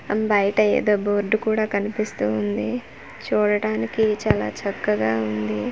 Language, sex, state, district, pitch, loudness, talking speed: Telugu, female, Andhra Pradesh, Manyam, 205 Hz, -22 LUFS, 115 wpm